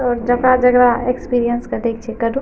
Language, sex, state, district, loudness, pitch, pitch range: Maithili, female, Bihar, Madhepura, -16 LUFS, 245 Hz, 235-250 Hz